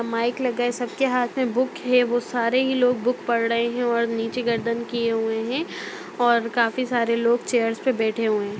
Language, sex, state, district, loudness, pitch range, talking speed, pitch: Hindi, female, Bihar, Darbhanga, -23 LUFS, 230-250 Hz, 215 wpm, 235 Hz